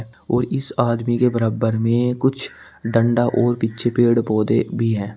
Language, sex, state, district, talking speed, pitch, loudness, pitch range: Hindi, male, Uttar Pradesh, Shamli, 160 wpm, 115 Hz, -19 LUFS, 115-120 Hz